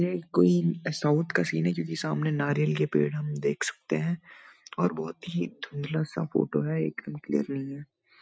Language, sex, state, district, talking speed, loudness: Hindi, male, Uttarakhand, Uttarkashi, 195 wpm, -28 LUFS